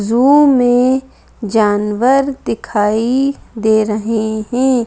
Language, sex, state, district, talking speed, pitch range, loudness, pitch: Hindi, female, Madhya Pradesh, Bhopal, 85 wpm, 215-265 Hz, -14 LUFS, 235 Hz